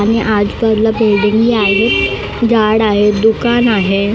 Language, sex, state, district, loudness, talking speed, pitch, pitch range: Marathi, female, Maharashtra, Mumbai Suburban, -12 LUFS, 115 wpm, 220 Hz, 210-225 Hz